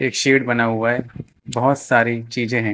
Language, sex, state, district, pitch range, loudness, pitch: Hindi, male, Uttar Pradesh, Lucknow, 115-135 Hz, -19 LUFS, 120 Hz